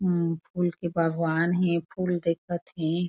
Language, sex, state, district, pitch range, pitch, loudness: Chhattisgarhi, female, Chhattisgarh, Korba, 165-175 Hz, 170 Hz, -27 LUFS